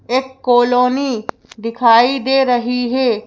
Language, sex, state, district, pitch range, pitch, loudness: Hindi, female, Madhya Pradesh, Bhopal, 240-260 Hz, 245 Hz, -15 LUFS